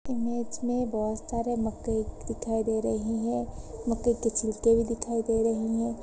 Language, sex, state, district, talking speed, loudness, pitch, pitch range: Hindi, female, Uttar Pradesh, Jyotiba Phule Nagar, 170 wpm, -29 LUFS, 230 Hz, 220-235 Hz